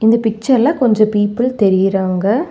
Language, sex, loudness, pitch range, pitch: Tamil, female, -14 LUFS, 200-245 Hz, 220 Hz